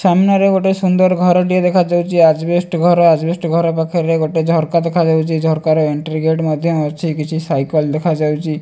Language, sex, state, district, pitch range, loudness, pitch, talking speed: Odia, male, Odisha, Malkangiri, 155-175 Hz, -14 LUFS, 165 Hz, 165 wpm